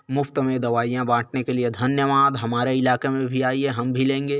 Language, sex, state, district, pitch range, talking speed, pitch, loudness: Chhattisgarhi, male, Chhattisgarh, Korba, 125-135 Hz, 220 wpm, 130 Hz, -22 LUFS